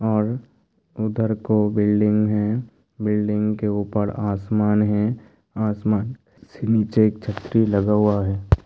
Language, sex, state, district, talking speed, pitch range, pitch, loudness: Hindi, male, Uttar Pradesh, Hamirpur, 125 wpm, 105-110 Hz, 105 Hz, -21 LUFS